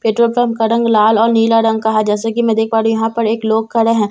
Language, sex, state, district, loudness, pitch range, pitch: Hindi, female, Bihar, Katihar, -14 LUFS, 220-230 Hz, 225 Hz